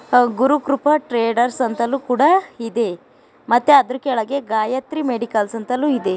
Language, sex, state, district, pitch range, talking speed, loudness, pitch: Kannada, female, Karnataka, Dakshina Kannada, 230-275 Hz, 125 wpm, -18 LUFS, 250 Hz